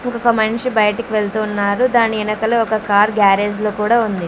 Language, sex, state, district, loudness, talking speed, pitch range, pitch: Telugu, female, Andhra Pradesh, Sri Satya Sai, -16 LUFS, 180 wpm, 210-230 Hz, 215 Hz